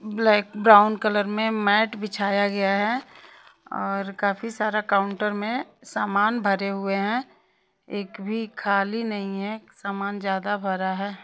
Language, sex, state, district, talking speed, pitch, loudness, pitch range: Hindi, female, Odisha, Nuapada, 140 wpm, 205 Hz, -24 LUFS, 200-215 Hz